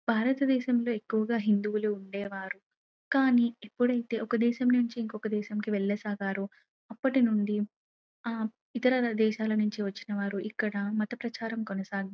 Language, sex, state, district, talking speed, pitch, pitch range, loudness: Telugu, female, Telangana, Nalgonda, 130 wpm, 220 Hz, 210-240 Hz, -30 LUFS